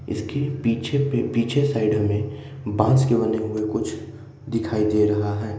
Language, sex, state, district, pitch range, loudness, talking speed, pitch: Hindi, male, Uttar Pradesh, Ghazipur, 105-130 Hz, -22 LUFS, 160 wpm, 110 Hz